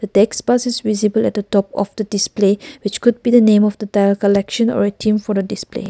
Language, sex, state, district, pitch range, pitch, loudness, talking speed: English, female, Nagaland, Kohima, 200-220 Hz, 210 Hz, -16 LUFS, 255 wpm